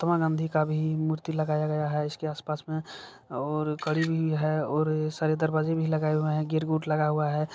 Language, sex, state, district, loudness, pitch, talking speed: Maithili, male, Bihar, Supaul, -28 LUFS, 155 Hz, 205 wpm